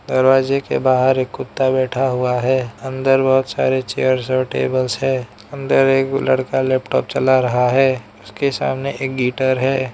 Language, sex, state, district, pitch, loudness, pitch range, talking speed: Hindi, male, Arunachal Pradesh, Lower Dibang Valley, 130 Hz, -17 LUFS, 130-135 Hz, 165 wpm